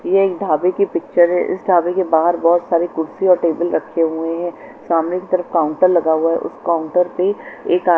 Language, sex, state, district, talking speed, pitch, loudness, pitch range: Hindi, female, Chandigarh, Chandigarh, 225 wpm, 175 Hz, -17 LUFS, 165-180 Hz